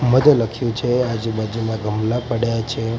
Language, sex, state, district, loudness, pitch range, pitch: Gujarati, male, Gujarat, Gandhinagar, -20 LUFS, 110-120 Hz, 115 Hz